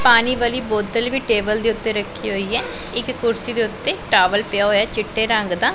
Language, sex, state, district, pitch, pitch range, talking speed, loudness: Punjabi, female, Punjab, Pathankot, 225 Hz, 210-240 Hz, 200 wpm, -19 LUFS